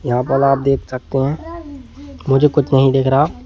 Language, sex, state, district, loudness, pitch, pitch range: Hindi, male, Madhya Pradesh, Bhopal, -15 LUFS, 135 Hz, 135-145 Hz